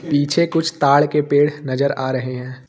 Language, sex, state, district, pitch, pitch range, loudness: Hindi, male, Uttar Pradesh, Lucknow, 145 Hz, 130-150 Hz, -18 LUFS